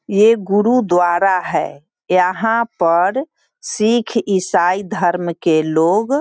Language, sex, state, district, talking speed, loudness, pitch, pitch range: Hindi, female, Bihar, Sitamarhi, 105 wpm, -16 LUFS, 195 Hz, 175-225 Hz